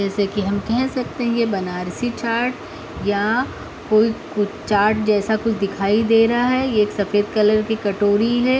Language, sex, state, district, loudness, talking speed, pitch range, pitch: Hindi, female, Uttar Pradesh, Muzaffarnagar, -19 LUFS, 170 wpm, 205-235 Hz, 215 Hz